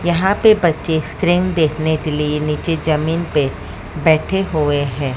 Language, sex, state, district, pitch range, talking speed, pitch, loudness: Hindi, female, Maharashtra, Mumbai Suburban, 150-175 Hz, 150 wpm, 160 Hz, -17 LUFS